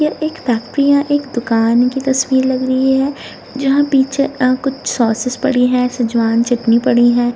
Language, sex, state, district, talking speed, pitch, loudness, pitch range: Hindi, female, Bihar, Jamui, 170 wpm, 260 Hz, -15 LUFS, 240-275 Hz